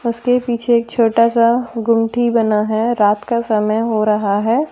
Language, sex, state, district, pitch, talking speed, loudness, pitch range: Hindi, female, Jharkhand, Deoghar, 230 Hz, 190 wpm, -16 LUFS, 215-235 Hz